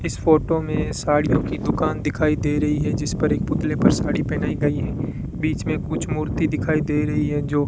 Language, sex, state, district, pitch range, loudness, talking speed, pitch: Hindi, male, Rajasthan, Bikaner, 150-155 Hz, -22 LUFS, 225 wpm, 150 Hz